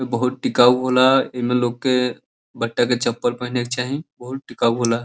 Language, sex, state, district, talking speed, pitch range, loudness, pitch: Bhojpuri, male, Uttar Pradesh, Deoria, 180 wpm, 120-125 Hz, -19 LUFS, 125 Hz